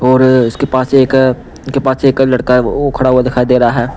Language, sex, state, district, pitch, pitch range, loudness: Hindi, male, Punjab, Pathankot, 130 Hz, 125-135 Hz, -11 LUFS